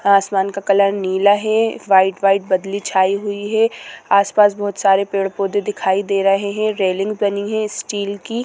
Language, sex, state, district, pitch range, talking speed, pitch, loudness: Hindi, female, Chhattisgarh, Korba, 195-205 Hz, 170 wpm, 200 Hz, -17 LUFS